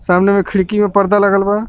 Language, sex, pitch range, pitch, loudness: Bhojpuri, male, 195-205 Hz, 200 Hz, -13 LUFS